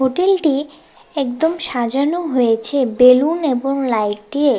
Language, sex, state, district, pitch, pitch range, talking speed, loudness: Bengali, female, West Bengal, Cooch Behar, 275 Hz, 250-315 Hz, 105 wpm, -16 LUFS